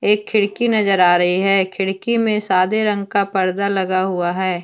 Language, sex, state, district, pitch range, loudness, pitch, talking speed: Hindi, female, Jharkhand, Deoghar, 185-210 Hz, -17 LUFS, 195 Hz, 195 wpm